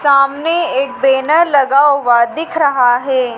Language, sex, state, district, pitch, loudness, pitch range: Hindi, female, Madhya Pradesh, Dhar, 275 Hz, -13 LUFS, 255-290 Hz